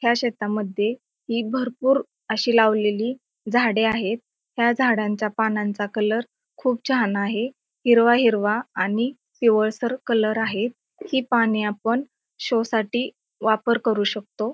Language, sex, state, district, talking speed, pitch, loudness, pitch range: Marathi, female, Maharashtra, Pune, 120 wpm, 230 Hz, -22 LUFS, 215-245 Hz